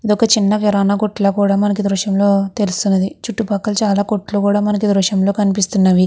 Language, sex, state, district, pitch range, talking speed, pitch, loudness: Telugu, female, Andhra Pradesh, Guntur, 195-210 Hz, 215 wpm, 205 Hz, -16 LUFS